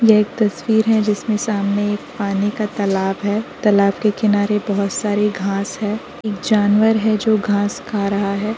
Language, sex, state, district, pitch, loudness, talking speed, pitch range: Hindi, female, Uttar Pradesh, Varanasi, 210 Hz, -18 LUFS, 180 wpm, 200-215 Hz